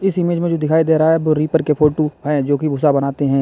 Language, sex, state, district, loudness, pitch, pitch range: Hindi, male, Uttar Pradesh, Lalitpur, -16 LUFS, 155 Hz, 145-160 Hz